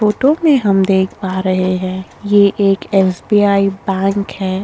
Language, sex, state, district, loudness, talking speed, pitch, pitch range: Hindi, female, Chhattisgarh, Korba, -14 LUFS, 155 wpm, 195 Hz, 190-205 Hz